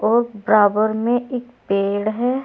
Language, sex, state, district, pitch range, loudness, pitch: Hindi, female, Uttar Pradesh, Saharanpur, 210-245 Hz, -19 LUFS, 220 Hz